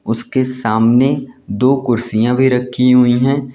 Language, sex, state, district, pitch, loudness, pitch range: Hindi, male, Uttar Pradesh, Lalitpur, 125 Hz, -14 LUFS, 120-130 Hz